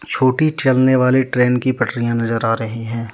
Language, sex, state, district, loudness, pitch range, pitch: Hindi, male, Jharkhand, Deoghar, -17 LUFS, 115-130 Hz, 125 Hz